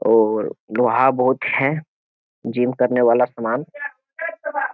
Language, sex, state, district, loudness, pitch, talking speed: Hindi, male, Bihar, Jamui, -19 LUFS, 130 Hz, 115 wpm